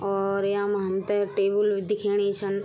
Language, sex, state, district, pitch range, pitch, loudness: Garhwali, female, Uttarakhand, Tehri Garhwal, 195-205 Hz, 200 Hz, -25 LUFS